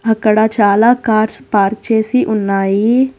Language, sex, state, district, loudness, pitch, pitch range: Telugu, female, Telangana, Hyderabad, -13 LUFS, 220 Hz, 205-225 Hz